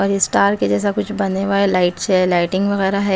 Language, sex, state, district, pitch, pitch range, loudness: Hindi, female, Chhattisgarh, Raipur, 195 Hz, 175-200 Hz, -17 LUFS